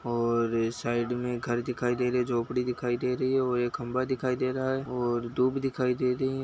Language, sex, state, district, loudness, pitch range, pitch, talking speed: Hindi, male, Bihar, Bhagalpur, -29 LUFS, 120-130 Hz, 125 Hz, 240 wpm